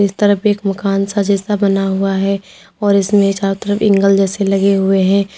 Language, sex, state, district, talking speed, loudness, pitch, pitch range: Hindi, female, Uttar Pradesh, Lalitpur, 200 wpm, -14 LUFS, 195 Hz, 195-200 Hz